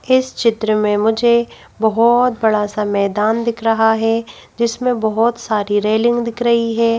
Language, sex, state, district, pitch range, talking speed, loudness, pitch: Hindi, female, Madhya Pradesh, Bhopal, 215-235 Hz, 155 wpm, -16 LUFS, 225 Hz